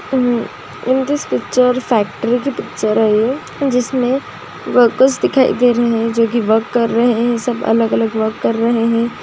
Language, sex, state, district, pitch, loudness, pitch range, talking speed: Hindi, female, Maharashtra, Nagpur, 240 Hz, -15 LUFS, 230-255 Hz, 165 wpm